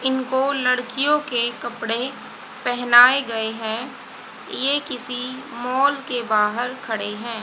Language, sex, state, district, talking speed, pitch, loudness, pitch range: Hindi, female, Haryana, Jhajjar, 115 wpm, 250 Hz, -20 LUFS, 235-265 Hz